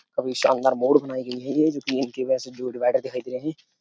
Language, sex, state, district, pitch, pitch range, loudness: Hindi, male, Uttar Pradesh, Etah, 130 Hz, 125-135 Hz, -24 LUFS